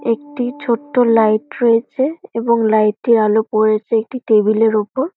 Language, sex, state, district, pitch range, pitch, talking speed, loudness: Bengali, female, West Bengal, Kolkata, 215-250 Hz, 230 Hz, 150 wpm, -16 LUFS